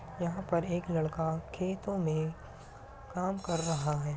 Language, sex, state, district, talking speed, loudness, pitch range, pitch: Hindi, female, Uttar Pradesh, Muzaffarnagar, 145 wpm, -34 LUFS, 160-180 Hz, 170 Hz